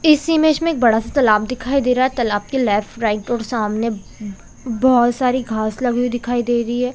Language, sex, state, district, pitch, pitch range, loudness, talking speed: Hindi, female, Chhattisgarh, Bilaspur, 240 Hz, 220-255 Hz, -18 LUFS, 250 wpm